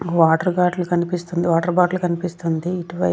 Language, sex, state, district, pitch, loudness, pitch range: Telugu, female, Andhra Pradesh, Sri Satya Sai, 175 Hz, -20 LUFS, 170-180 Hz